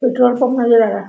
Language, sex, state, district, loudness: Hindi, female, Bihar, Araria, -14 LUFS